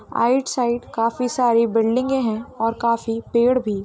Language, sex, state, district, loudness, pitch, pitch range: Hindi, female, Bihar, Muzaffarpur, -20 LUFS, 235 Hz, 225-250 Hz